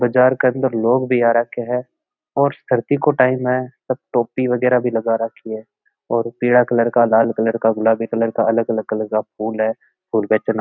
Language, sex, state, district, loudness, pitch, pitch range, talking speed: Marwari, male, Rajasthan, Nagaur, -18 LUFS, 115 Hz, 115-125 Hz, 205 wpm